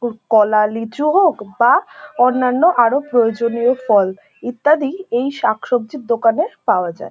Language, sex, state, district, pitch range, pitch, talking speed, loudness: Bengali, female, West Bengal, North 24 Parganas, 225-280 Hz, 245 Hz, 120 wpm, -16 LUFS